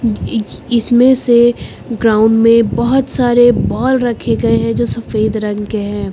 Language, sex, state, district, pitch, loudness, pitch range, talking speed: Hindi, female, Uttar Pradesh, Lucknow, 225 Hz, -13 LUFS, 205-240 Hz, 155 wpm